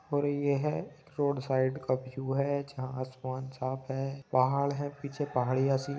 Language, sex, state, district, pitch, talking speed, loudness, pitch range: Hindi, male, Uttar Pradesh, Budaun, 135 Hz, 200 wpm, -32 LUFS, 130-140 Hz